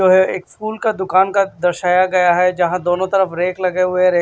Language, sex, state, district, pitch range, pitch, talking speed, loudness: Hindi, male, Maharashtra, Washim, 180-190 Hz, 185 Hz, 255 wpm, -16 LUFS